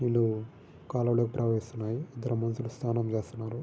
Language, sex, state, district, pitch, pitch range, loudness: Telugu, male, Andhra Pradesh, Srikakulam, 115 Hz, 115-120 Hz, -31 LUFS